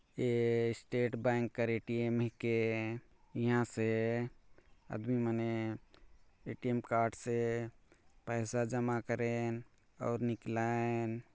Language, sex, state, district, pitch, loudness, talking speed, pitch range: Chhattisgarhi, male, Chhattisgarh, Jashpur, 115 Hz, -36 LUFS, 125 wpm, 115-120 Hz